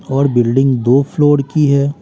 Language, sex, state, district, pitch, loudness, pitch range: Hindi, female, Bihar, West Champaran, 140 Hz, -13 LUFS, 135-145 Hz